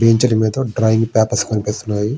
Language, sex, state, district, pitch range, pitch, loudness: Telugu, male, Andhra Pradesh, Srikakulam, 110-115 Hz, 110 Hz, -16 LUFS